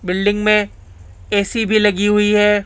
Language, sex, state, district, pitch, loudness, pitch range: Hindi, male, Rajasthan, Jaipur, 205 Hz, -15 LUFS, 195-210 Hz